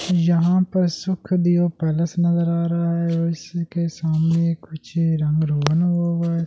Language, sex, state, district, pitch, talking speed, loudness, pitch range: Hindi, male, Delhi, New Delhi, 170 Hz, 130 wpm, -21 LUFS, 165-175 Hz